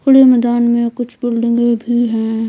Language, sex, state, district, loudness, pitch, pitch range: Hindi, female, Bihar, Patna, -14 LUFS, 240 Hz, 235-245 Hz